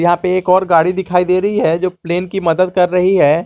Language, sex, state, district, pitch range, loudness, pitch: Hindi, male, Jharkhand, Garhwa, 175-185 Hz, -14 LUFS, 180 Hz